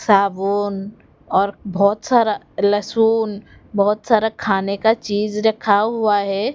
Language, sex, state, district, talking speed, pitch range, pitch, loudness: Hindi, female, Odisha, Khordha, 120 wpm, 200-220 Hz, 205 Hz, -18 LUFS